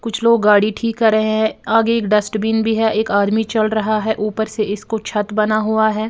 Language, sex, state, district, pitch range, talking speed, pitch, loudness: Hindi, female, Bihar, Patna, 215-225 Hz, 235 wpm, 220 Hz, -17 LUFS